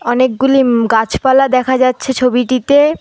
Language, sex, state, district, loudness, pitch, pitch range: Bengali, female, West Bengal, Alipurduar, -12 LUFS, 255 Hz, 245-265 Hz